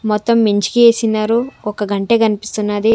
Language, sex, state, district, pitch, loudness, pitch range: Telugu, female, Andhra Pradesh, Sri Satya Sai, 215 Hz, -15 LUFS, 210-230 Hz